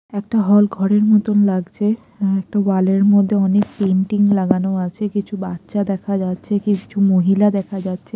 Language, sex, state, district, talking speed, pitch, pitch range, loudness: Bengali, female, Odisha, Khordha, 160 wpm, 200 Hz, 190-205 Hz, -17 LUFS